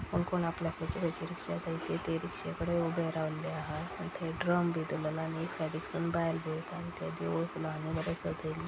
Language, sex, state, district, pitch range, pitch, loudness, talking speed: Konkani, male, Goa, North and South Goa, 155-170 Hz, 160 Hz, -36 LUFS, 220 wpm